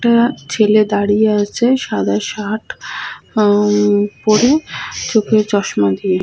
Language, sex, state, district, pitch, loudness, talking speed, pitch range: Bengali, female, West Bengal, Jhargram, 210 Hz, -15 LUFS, 135 wpm, 205-220 Hz